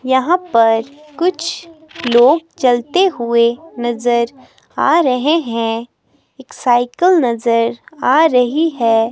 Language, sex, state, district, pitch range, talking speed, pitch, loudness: Hindi, female, Himachal Pradesh, Shimla, 235-325 Hz, 105 wpm, 250 Hz, -15 LUFS